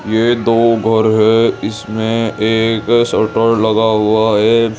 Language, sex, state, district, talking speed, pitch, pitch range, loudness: Hindi, male, Uttar Pradesh, Saharanpur, 125 wpm, 110 Hz, 110-115 Hz, -13 LUFS